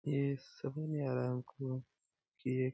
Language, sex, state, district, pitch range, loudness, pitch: Hindi, male, Jharkhand, Jamtara, 130-140 Hz, -39 LUFS, 130 Hz